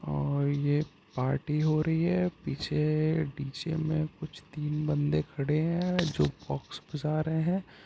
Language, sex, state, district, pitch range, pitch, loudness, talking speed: Hindi, male, Bihar, Gopalganj, 140-160 Hz, 150 Hz, -30 LUFS, 145 wpm